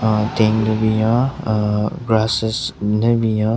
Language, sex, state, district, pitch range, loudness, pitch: Rengma, male, Nagaland, Kohima, 110-115 Hz, -18 LUFS, 110 Hz